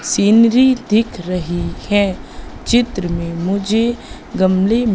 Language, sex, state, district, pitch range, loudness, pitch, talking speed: Hindi, female, Madhya Pradesh, Katni, 185-230 Hz, -16 LUFS, 205 Hz, 95 wpm